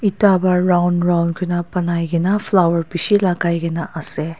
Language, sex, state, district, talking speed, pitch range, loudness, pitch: Nagamese, female, Nagaland, Dimapur, 205 wpm, 170-185 Hz, -17 LUFS, 175 Hz